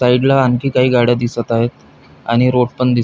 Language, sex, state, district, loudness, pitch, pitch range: Marathi, male, Maharashtra, Pune, -14 LUFS, 125 Hz, 120-125 Hz